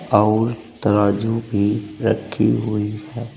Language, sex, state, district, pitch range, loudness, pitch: Hindi, male, Uttar Pradesh, Saharanpur, 105-115 Hz, -20 LUFS, 110 Hz